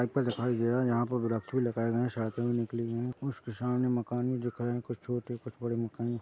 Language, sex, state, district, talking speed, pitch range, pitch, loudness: Hindi, male, Chhattisgarh, Rajnandgaon, 270 wpm, 115-125 Hz, 120 Hz, -32 LUFS